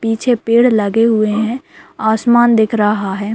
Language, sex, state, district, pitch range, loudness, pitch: Hindi, female, Bihar, Madhepura, 215-235 Hz, -13 LUFS, 220 Hz